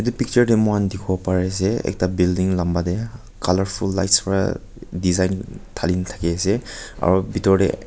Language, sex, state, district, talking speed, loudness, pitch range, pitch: Nagamese, male, Nagaland, Kohima, 160 wpm, -20 LUFS, 90-100 Hz, 95 Hz